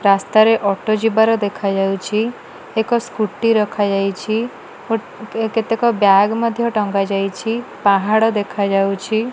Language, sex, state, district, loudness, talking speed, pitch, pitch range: Odia, female, Odisha, Malkangiri, -17 LUFS, 115 wpm, 215 Hz, 195-225 Hz